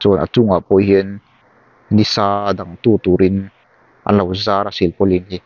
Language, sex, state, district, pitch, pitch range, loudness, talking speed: Mizo, male, Mizoram, Aizawl, 100 Hz, 95-105 Hz, -15 LUFS, 165 wpm